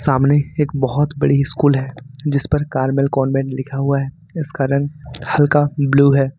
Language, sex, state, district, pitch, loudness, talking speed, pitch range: Hindi, male, Jharkhand, Ranchi, 140 Hz, -17 LUFS, 170 wpm, 135-145 Hz